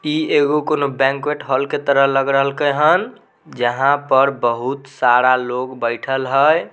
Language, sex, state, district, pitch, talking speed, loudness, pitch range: Maithili, male, Bihar, Samastipur, 135 Hz, 150 wpm, -17 LUFS, 130-145 Hz